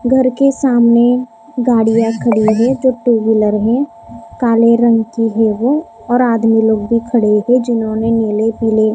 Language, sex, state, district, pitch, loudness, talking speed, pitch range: Hindi, female, Maharashtra, Mumbai Suburban, 230 Hz, -13 LUFS, 165 wpm, 225-245 Hz